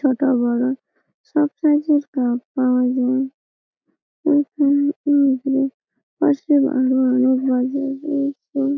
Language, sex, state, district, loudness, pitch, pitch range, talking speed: Bengali, female, West Bengal, Malda, -19 LUFS, 275 Hz, 260-290 Hz, 115 wpm